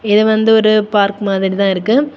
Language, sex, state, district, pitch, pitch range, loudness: Tamil, female, Tamil Nadu, Kanyakumari, 210 Hz, 200-220 Hz, -13 LUFS